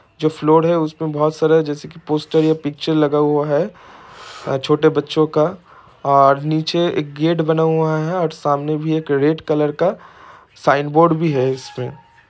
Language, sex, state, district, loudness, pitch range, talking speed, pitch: Hindi, male, Bihar, East Champaran, -17 LUFS, 145-160 Hz, 160 wpm, 155 Hz